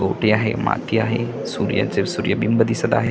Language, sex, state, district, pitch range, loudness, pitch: Marathi, male, Maharashtra, Washim, 110-115 Hz, -20 LUFS, 115 Hz